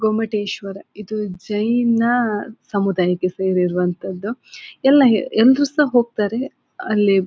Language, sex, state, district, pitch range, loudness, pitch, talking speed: Kannada, female, Karnataka, Dakshina Kannada, 195-235 Hz, -19 LUFS, 215 Hz, 100 wpm